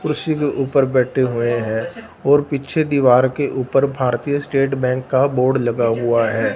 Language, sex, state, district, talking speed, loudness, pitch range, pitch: Hindi, male, Punjab, Fazilka, 175 wpm, -18 LUFS, 120-140 Hz, 130 Hz